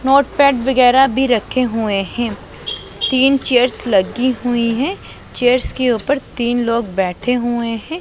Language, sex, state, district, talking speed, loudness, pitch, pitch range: Hindi, female, Punjab, Pathankot, 140 wpm, -16 LUFS, 245 Hz, 230-265 Hz